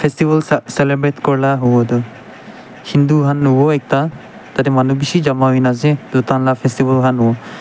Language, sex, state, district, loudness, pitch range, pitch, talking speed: Nagamese, male, Nagaland, Dimapur, -14 LUFS, 130-145 Hz, 135 Hz, 160 wpm